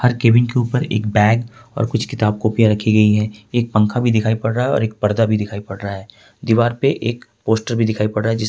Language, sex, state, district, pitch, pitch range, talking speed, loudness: Hindi, male, Jharkhand, Ranchi, 110 Hz, 105-120 Hz, 275 wpm, -17 LUFS